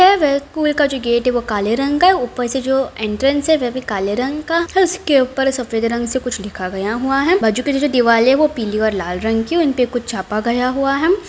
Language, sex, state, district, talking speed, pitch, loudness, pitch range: Hindi, female, Bihar, Jamui, 250 wpm, 255 Hz, -17 LUFS, 225-285 Hz